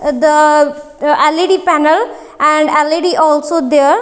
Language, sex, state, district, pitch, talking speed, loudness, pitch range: English, female, Punjab, Kapurthala, 300 Hz, 105 wpm, -11 LUFS, 295-315 Hz